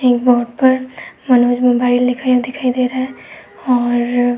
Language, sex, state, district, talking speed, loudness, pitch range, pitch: Hindi, female, Uttar Pradesh, Etah, 150 wpm, -15 LUFS, 245-255 Hz, 250 Hz